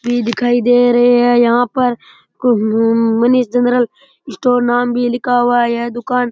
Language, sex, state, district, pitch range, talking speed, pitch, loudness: Rajasthani, male, Rajasthan, Churu, 240-245 Hz, 180 wpm, 245 Hz, -14 LUFS